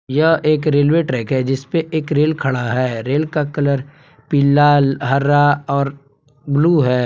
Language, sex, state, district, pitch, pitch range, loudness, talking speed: Hindi, male, Jharkhand, Palamu, 145 Hz, 135-150 Hz, -16 LUFS, 160 wpm